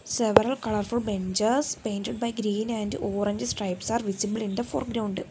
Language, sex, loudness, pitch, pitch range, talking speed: English, female, -27 LUFS, 215 Hz, 205-230 Hz, 160 wpm